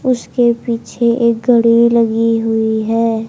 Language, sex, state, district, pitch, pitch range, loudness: Hindi, male, Haryana, Charkhi Dadri, 230 Hz, 225-235 Hz, -14 LUFS